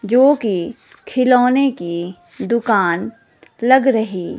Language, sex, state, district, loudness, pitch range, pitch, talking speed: Hindi, female, Himachal Pradesh, Shimla, -16 LUFS, 180-255 Hz, 230 Hz, 95 wpm